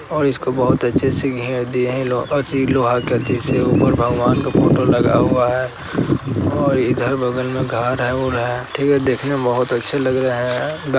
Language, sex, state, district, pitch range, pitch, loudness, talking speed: Hindi, male, Bihar, Sitamarhi, 125-135 Hz, 130 Hz, -17 LUFS, 230 wpm